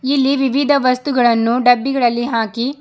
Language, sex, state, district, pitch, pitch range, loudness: Kannada, male, Karnataka, Bidar, 255 Hz, 240-275 Hz, -15 LUFS